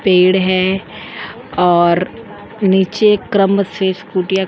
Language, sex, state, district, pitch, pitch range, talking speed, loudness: Hindi, female, Uttar Pradesh, Jyotiba Phule Nagar, 190 Hz, 185-195 Hz, 105 wpm, -14 LUFS